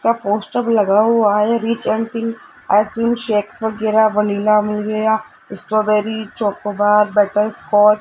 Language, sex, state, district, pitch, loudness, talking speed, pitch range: Hindi, male, Rajasthan, Jaipur, 215 Hz, -17 LUFS, 110 wpm, 210-225 Hz